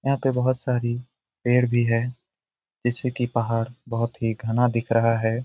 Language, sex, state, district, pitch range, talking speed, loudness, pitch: Hindi, male, Bihar, Lakhisarai, 115-125 Hz, 175 wpm, -24 LUFS, 120 Hz